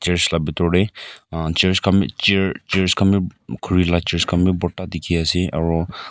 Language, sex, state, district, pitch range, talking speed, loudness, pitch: Nagamese, male, Nagaland, Kohima, 85-95 Hz, 205 wpm, -19 LUFS, 90 Hz